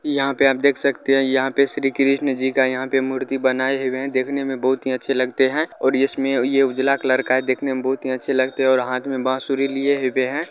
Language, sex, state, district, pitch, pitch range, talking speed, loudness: Maithili, male, Bihar, Vaishali, 135 Hz, 130-135 Hz, 265 wpm, -19 LUFS